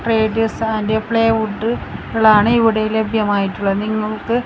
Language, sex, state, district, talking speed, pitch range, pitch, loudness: Malayalam, female, Kerala, Kasaragod, 95 wpm, 215-225 Hz, 220 Hz, -17 LUFS